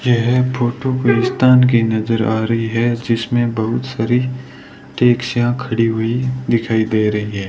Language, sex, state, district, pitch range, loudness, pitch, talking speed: Hindi, male, Rajasthan, Bikaner, 110-125 Hz, -16 LUFS, 120 Hz, 145 wpm